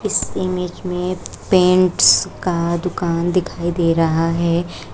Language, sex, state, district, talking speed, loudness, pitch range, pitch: Hindi, female, Uttar Pradesh, Shamli, 120 wpm, -17 LUFS, 170-185 Hz, 175 Hz